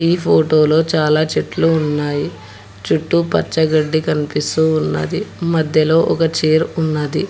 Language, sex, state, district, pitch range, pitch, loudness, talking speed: Telugu, male, Telangana, Hyderabad, 150-160 Hz, 155 Hz, -16 LUFS, 115 wpm